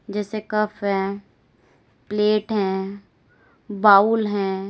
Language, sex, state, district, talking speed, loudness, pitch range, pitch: Hindi, female, Uttar Pradesh, Lalitpur, 90 wpm, -21 LUFS, 195-215 Hz, 205 Hz